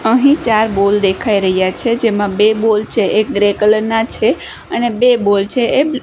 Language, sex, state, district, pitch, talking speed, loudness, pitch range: Gujarati, female, Gujarat, Gandhinagar, 220 Hz, 210 wpm, -13 LUFS, 205-235 Hz